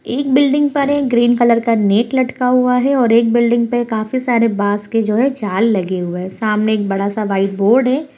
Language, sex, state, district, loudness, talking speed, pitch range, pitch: Hindi, female, Bihar, Purnia, -15 LUFS, 250 wpm, 210-255 Hz, 235 Hz